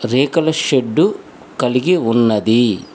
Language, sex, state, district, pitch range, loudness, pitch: Telugu, male, Telangana, Hyderabad, 115-150 Hz, -15 LUFS, 125 Hz